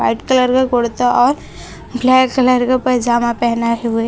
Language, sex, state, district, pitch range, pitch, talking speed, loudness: Hindi, female, Chhattisgarh, Raipur, 235-255 Hz, 245 Hz, 160 wpm, -14 LUFS